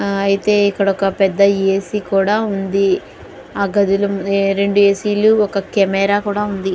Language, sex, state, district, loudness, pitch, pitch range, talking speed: Telugu, female, Andhra Pradesh, Guntur, -16 LUFS, 200 Hz, 195-205 Hz, 150 wpm